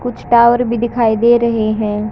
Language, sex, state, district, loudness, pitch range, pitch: Hindi, male, Haryana, Charkhi Dadri, -13 LUFS, 220-240 Hz, 235 Hz